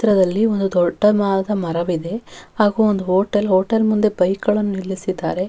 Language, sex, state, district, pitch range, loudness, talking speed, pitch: Kannada, female, Karnataka, Bellary, 185-210 Hz, -18 LUFS, 120 wpm, 195 Hz